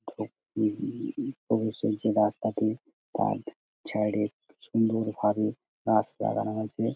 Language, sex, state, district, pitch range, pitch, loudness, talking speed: Bengali, male, West Bengal, Dakshin Dinajpur, 105-110 Hz, 110 Hz, -29 LUFS, 95 wpm